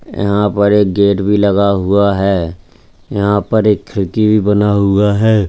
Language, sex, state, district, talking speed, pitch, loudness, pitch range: Hindi, male, Uttar Pradesh, Lalitpur, 175 wpm, 100 Hz, -13 LUFS, 100-105 Hz